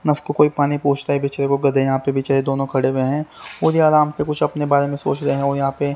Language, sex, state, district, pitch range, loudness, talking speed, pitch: Hindi, male, Haryana, Rohtak, 135-150 Hz, -19 LUFS, 250 wpm, 140 Hz